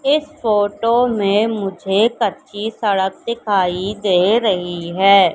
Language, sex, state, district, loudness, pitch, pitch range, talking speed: Hindi, female, Madhya Pradesh, Katni, -17 LUFS, 205 Hz, 190-230 Hz, 110 wpm